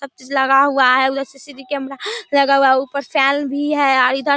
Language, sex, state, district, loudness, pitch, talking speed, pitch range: Hindi, female, Bihar, Darbhanga, -16 LUFS, 275 Hz, 245 wpm, 265-280 Hz